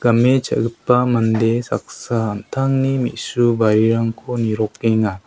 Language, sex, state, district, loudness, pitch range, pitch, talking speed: Garo, male, Meghalaya, South Garo Hills, -18 LUFS, 110-125 Hz, 115 Hz, 90 wpm